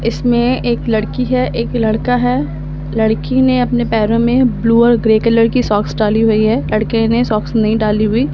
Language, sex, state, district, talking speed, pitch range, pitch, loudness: Hindi, female, Delhi, New Delhi, 195 wpm, 215-240 Hz, 225 Hz, -14 LUFS